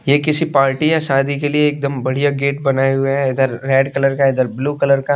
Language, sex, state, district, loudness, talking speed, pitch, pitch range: Hindi, male, Bihar, West Champaran, -16 LUFS, 245 wpm, 140 Hz, 135-145 Hz